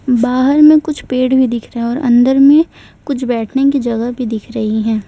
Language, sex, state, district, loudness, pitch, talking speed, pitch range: Hindi, female, Uttar Pradesh, Lalitpur, -13 LUFS, 255 Hz, 210 wpm, 235-275 Hz